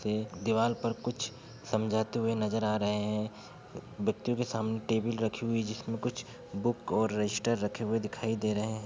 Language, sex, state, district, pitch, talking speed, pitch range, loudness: Hindi, male, Uttar Pradesh, Etah, 110 Hz, 190 wpm, 105-115 Hz, -32 LUFS